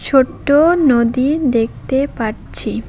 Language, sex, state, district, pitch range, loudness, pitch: Bengali, female, West Bengal, Alipurduar, 230-285 Hz, -15 LUFS, 260 Hz